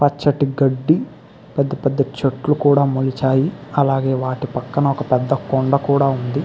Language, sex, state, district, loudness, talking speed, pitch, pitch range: Telugu, male, Andhra Pradesh, Krishna, -18 LUFS, 140 wpm, 140 Hz, 130-140 Hz